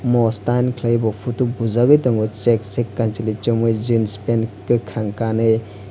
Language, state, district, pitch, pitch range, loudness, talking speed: Kokborok, Tripura, West Tripura, 115 Hz, 110-120 Hz, -19 LUFS, 150 wpm